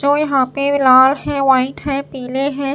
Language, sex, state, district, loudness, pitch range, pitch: Hindi, female, Chhattisgarh, Raipur, -15 LUFS, 265-280 Hz, 275 Hz